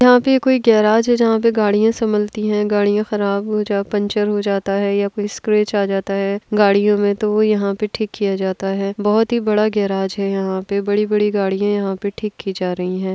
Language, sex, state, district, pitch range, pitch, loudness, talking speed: Hindi, female, Bihar, Kishanganj, 200-215 Hz, 205 Hz, -17 LUFS, 230 wpm